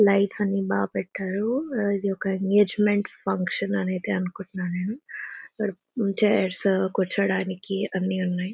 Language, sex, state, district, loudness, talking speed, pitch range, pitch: Telugu, female, Telangana, Nalgonda, -25 LUFS, 105 wpm, 185-205 Hz, 195 Hz